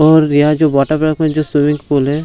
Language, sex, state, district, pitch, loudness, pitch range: Hindi, male, Bihar, Gaya, 150 Hz, -13 LUFS, 145-155 Hz